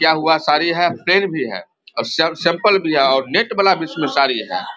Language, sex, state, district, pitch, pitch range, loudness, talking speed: Hindi, male, Bihar, Vaishali, 160 Hz, 155-185 Hz, -16 LUFS, 240 wpm